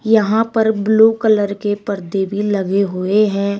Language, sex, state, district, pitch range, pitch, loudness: Hindi, female, Uttar Pradesh, Shamli, 200-220 Hz, 205 Hz, -16 LUFS